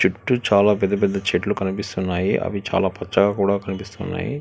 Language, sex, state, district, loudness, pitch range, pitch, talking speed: Telugu, male, Telangana, Hyderabad, -21 LUFS, 95-105 Hz, 100 Hz, 150 wpm